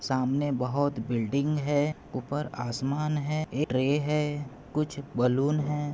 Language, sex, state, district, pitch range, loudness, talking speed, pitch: Hindi, male, Maharashtra, Pune, 130-150 Hz, -29 LUFS, 130 wpm, 145 Hz